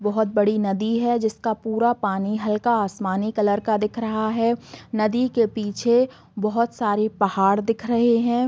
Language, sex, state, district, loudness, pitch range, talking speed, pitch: Hindi, female, Bihar, Gopalganj, -22 LUFS, 210-235 Hz, 165 wpm, 220 Hz